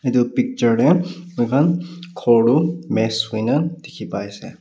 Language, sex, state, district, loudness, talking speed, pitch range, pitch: Nagamese, male, Nagaland, Kohima, -19 LUFS, 155 wpm, 115-175 Hz, 155 Hz